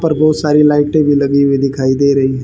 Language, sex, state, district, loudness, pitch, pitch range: Hindi, female, Haryana, Charkhi Dadri, -12 LUFS, 140 Hz, 135-150 Hz